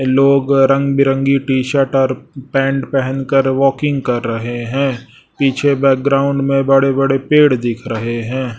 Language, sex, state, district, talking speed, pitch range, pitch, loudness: Hindi, male, Chhattisgarh, Raipur, 145 wpm, 130-140 Hz, 135 Hz, -15 LUFS